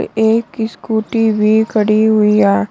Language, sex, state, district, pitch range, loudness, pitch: Hindi, male, Uttar Pradesh, Shamli, 210-225 Hz, -14 LUFS, 220 Hz